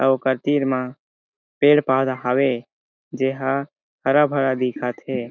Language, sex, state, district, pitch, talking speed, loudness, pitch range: Chhattisgarhi, male, Chhattisgarh, Jashpur, 130 Hz, 125 wpm, -21 LUFS, 125-140 Hz